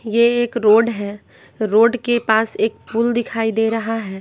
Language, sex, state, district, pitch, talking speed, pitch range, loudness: Hindi, female, Bihar, West Champaran, 225 Hz, 185 wpm, 220-235 Hz, -17 LUFS